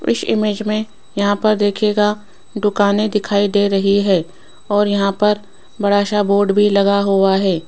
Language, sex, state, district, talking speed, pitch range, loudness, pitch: Hindi, female, Rajasthan, Jaipur, 165 wpm, 200-210 Hz, -16 LUFS, 205 Hz